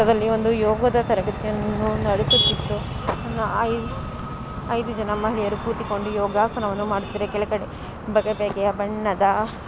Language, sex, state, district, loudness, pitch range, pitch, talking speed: Kannada, female, Karnataka, Mysore, -23 LUFS, 205-220 Hz, 215 Hz, 95 wpm